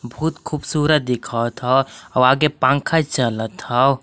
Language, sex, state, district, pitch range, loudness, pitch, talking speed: Magahi, male, Jharkhand, Palamu, 120-150 Hz, -19 LUFS, 135 Hz, 135 wpm